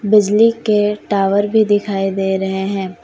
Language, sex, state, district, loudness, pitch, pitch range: Hindi, female, Jharkhand, Deoghar, -15 LUFS, 205 Hz, 195-210 Hz